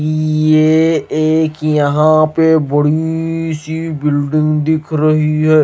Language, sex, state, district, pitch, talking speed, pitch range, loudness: Hindi, male, Maharashtra, Gondia, 155 Hz, 105 wpm, 155-160 Hz, -13 LUFS